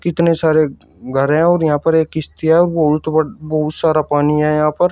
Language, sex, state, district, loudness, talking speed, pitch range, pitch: Hindi, male, Uttar Pradesh, Shamli, -15 LUFS, 205 wpm, 150-165 Hz, 155 Hz